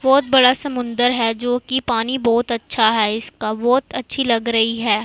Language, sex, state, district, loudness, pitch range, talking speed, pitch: Hindi, female, Punjab, Pathankot, -18 LUFS, 225-255 Hz, 190 wpm, 235 Hz